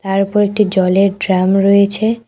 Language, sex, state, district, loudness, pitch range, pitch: Bengali, female, West Bengal, Cooch Behar, -13 LUFS, 195-205 Hz, 195 Hz